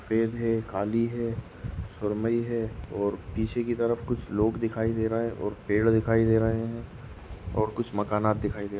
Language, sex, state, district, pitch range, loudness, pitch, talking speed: Hindi, male, Goa, North and South Goa, 105-115 Hz, -28 LUFS, 110 Hz, 200 wpm